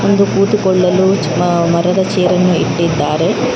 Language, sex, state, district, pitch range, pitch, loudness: Kannada, female, Karnataka, Bangalore, 170-190 Hz, 180 Hz, -13 LUFS